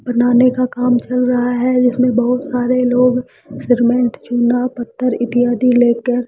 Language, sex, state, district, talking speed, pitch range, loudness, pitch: Hindi, female, Rajasthan, Jaipur, 155 wpm, 245-250 Hz, -15 LUFS, 245 Hz